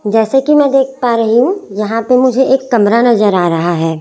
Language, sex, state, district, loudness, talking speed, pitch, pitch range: Hindi, female, Chhattisgarh, Raipur, -11 LUFS, 240 wpm, 235 Hz, 210-265 Hz